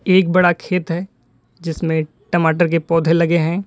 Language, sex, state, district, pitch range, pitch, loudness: Hindi, male, Uttar Pradesh, Lalitpur, 160-180 Hz, 170 Hz, -17 LUFS